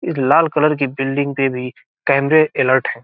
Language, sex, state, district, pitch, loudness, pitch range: Hindi, male, Bihar, Gopalganj, 140 Hz, -16 LUFS, 135-150 Hz